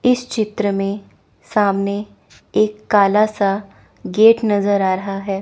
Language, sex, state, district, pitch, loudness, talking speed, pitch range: Hindi, female, Chandigarh, Chandigarh, 205 Hz, -17 LUFS, 135 wpm, 195-215 Hz